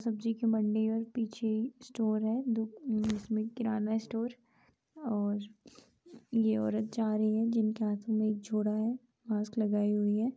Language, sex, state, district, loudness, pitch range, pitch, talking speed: Hindi, female, Uttar Pradesh, Budaun, -33 LUFS, 215-230 Hz, 220 Hz, 150 wpm